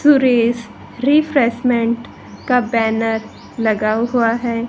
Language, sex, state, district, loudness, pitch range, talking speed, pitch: Hindi, female, Haryana, Rohtak, -17 LUFS, 230-250 Hz, 90 wpm, 235 Hz